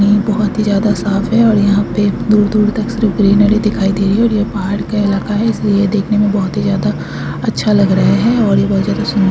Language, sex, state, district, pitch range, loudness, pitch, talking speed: Hindi, female, Chhattisgarh, Sukma, 200-215 Hz, -13 LUFS, 205 Hz, 265 wpm